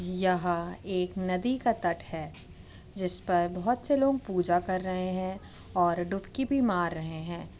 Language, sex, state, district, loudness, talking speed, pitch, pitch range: Hindi, female, Uttar Pradesh, Muzaffarnagar, -30 LUFS, 165 wpm, 180 Hz, 175-195 Hz